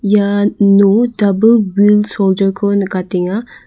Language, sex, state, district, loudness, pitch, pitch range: Garo, female, Meghalaya, West Garo Hills, -12 LUFS, 200 Hz, 195-210 Hz